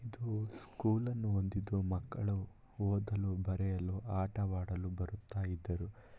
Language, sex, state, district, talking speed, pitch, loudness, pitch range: Kannada, male, Karnataka, Mysore, 85 wpm, 100 Hz, -38 LUFS, 95-110 Hz